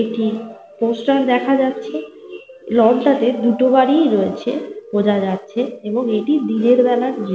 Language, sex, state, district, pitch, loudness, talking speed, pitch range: Bengali, female, Jharkhand, Sahebganj, 245 Hz, -17 LUFS, 140 wpm, 225-270 Hz